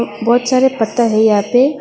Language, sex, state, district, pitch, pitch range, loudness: Hindi, female, Tripura, West Tripura, 235 Hz, 220-260 Hz, -13 LUFS